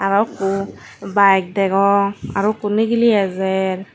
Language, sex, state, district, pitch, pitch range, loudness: Chakma, female, Tripura, Dhalai, 195 Hz, 195-205 Hz, -17 LUFS